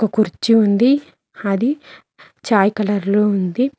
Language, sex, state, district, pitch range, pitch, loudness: Telugu, female, Telangana, Mahabubabad, 200-245 Hz, 215 Hz, -17 LUFS